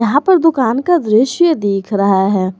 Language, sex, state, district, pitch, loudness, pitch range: Hindi, female, Jharkhand, Garhwa, 230 Hz, -13 LUFS, 200-325 Hz